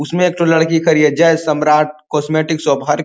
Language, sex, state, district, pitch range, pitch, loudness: Hindi, male, Uttar Pradesh, Ghazipur, 150-165 Hz, 155 Hz, -14 LUFS